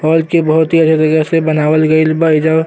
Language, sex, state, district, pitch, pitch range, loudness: Bhojpuri, male, Uttar Pradesh, Gorakhpur, 160 Hz, 155-160 Hz, -11 LUFS